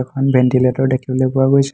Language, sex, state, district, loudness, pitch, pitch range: Assamese, male, Assam, Hailakandi, -15 LUFS, 130 Hz, 130-135 Hz